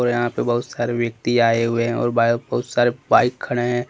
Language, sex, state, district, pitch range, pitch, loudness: Hindi, male, Jharkhand, Deoghar, 115-120 Hz, 120 Hz, -20 LUFS